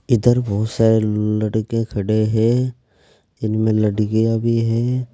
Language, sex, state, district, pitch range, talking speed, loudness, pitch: Hindi, male, Uttar Pradesh, Saharanpur, 110-115 Hz, 115 wpm, -18 LUFS, 110 Hz